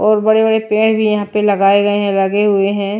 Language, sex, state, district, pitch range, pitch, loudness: Hindi, female, Bihar, Patna, 200-215 Hz, 205 Hz, -13 LUFS